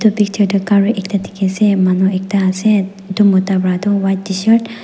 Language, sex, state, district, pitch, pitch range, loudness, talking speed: Nagamese, female, Nagaland, Dimapur, 195 Hz, 190-210 Hz, -14 LUFS, 225 wpm